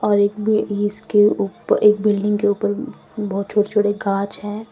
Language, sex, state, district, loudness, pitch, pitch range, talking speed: Hindi, female, Assam, Sonitpur, -19 LUFS, 205 Hz, 205-210 Hz, 175 wpm